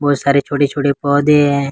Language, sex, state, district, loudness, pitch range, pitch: Hindi, male, Jharkhand, Ranchi, -14 LUFS, 140-145 Hz, 145 Hz